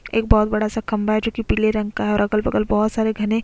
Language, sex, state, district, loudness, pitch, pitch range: Hindi, female, Chhattisgarh, Sukma, -20 LUFS, 215 Hz, 215-220 Hz